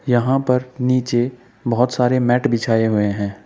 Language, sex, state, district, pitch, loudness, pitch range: Hindi, male, Uttar Pradesh, Saharanpur, 125 Hz, -18 LUFS, 115-125 Hz